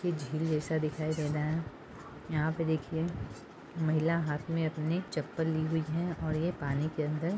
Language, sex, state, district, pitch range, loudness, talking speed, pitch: Hindi, female, Bihar, Saharsa, 155-165 Hz, -33 LUFS, 185 wpm, 160 Hz